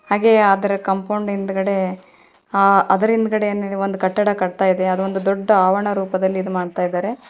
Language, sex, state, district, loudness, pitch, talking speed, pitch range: Kannada, female, Karnataka, Koppal, -18 LUFS, 195 Hz, 125 wpm, 185-205 Hz